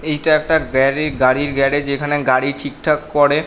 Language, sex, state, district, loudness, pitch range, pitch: Bengali, male, West Bengal, North 24 Parganas, -16 LUFS, 135-150 Hz, 145 Hz